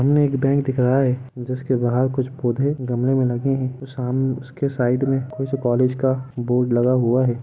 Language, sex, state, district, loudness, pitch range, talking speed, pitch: Hindi, male, Jharkhand, Sahebganj, -21 LUFS, 125-135 Hz, 210 wpm, 130 Hz